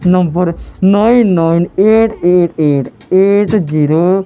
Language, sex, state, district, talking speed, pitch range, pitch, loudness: Punjabi, male, Punjab, Kapurthala, 125 wpm, 170-205 Hz, 180 Hz, -11 LUFS